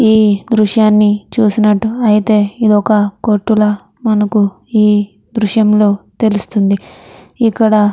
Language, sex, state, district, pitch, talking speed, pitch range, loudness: Telugu, female, Andhra Pradesh, Chittoor, 210 Hz, 105 wpm, 205-220 Hz, -12 LUFS